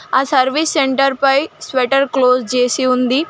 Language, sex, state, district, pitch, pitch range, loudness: Telugu, female, Telangana, Mahabubabad, 265 Hz, 255-275 Hz, -15 LUFS